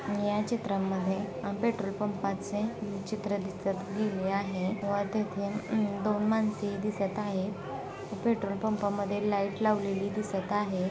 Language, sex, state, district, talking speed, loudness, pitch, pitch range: Marathi, female, Maharashtra, Sindhudurg, 160 wpm, -32 LUFS, 200 Hz, 195-210 Hz